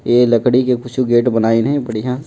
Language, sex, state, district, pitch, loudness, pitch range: Chhattisgarhi, male, Chhattisgarh, Jashpur, 125 Hz, -15 LUFS, 120-125 Hz